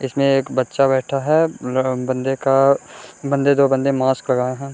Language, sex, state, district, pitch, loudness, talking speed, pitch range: Hindi, male, Bihar, Gopalganj, 135 Hz, -18 LUFS, 190 wpm, 130-140 Hz